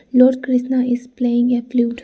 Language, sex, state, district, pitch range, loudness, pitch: English, female, Arunachal Pradesh, Lower Dibang Valley, 245-255 Hz, -17 LUFS, 250 Hz